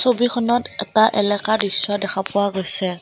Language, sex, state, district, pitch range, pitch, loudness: Assamese, female, Assam, Kamrup Metropolitan, 195-220 Hz, 205 Hz, -18 LUFS